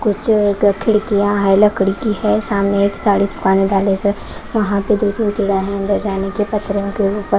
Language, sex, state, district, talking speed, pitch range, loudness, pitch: Hindi, female, Haryana, Rohtak, 210 wpm, 200-210 Hz, -16 LUFS, 200 Hz